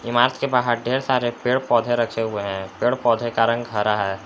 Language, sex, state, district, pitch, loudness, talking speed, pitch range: Hindi, male, Jharkhand, Palamu, 120 Hz, -21 LUFS, 225 wpm, 110-125 Hz